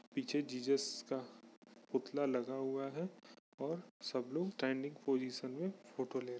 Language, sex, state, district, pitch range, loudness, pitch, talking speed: Hindi, male, Bihar, Bhagalpur, 130-145 Hz, -41 LUFS, 135 Hz, 130 wpm